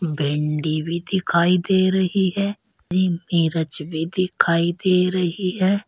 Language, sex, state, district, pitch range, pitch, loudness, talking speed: Hindi, female, Uttar Pradesh, Saharanpur, 165-190 Hz, 180 Hz, -21 LUFS, 120 wpm